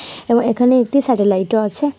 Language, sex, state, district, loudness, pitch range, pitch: Bengali, female, West Bengal, Purulia, -15 LUFS, 215-255 Hz, 235 Hz